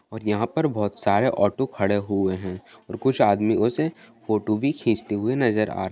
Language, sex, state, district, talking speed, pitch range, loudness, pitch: Hindi, male, Bihar, Bhagalpur, 190 wpm, 100-115 Hz, -23 LUFS, 110 Hz